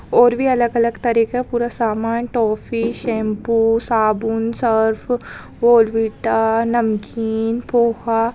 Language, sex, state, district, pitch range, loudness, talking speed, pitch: Hindi, female, Uttar Pradesh, Muzaffarnagar, 225-235 Hz, -18 LUFS, 110 wpm, 230 Hz